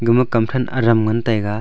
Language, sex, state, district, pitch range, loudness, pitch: Wancho, male, Arunachal Pradesh, Longding, 110-120 Hz, -17 LUFS, 115 Hz